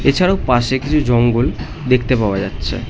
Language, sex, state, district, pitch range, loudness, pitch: Bengali, male, West Bengal, North 24 Parganas, 120-140 Hz, -16 LUFS, 125 Hz